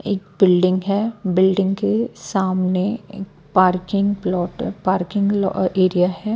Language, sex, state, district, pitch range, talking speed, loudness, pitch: Hindi, female, Bihar, West Champaran, 185-200 Hz, 115 wpm, -19 LUFS, 190 Hz